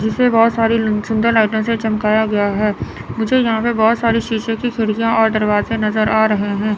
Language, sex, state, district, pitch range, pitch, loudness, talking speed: Hindi, female, Chandigarh, Chandigarh, 215-230 Hz, 220 Hz, -16 LUFS, 205 wpm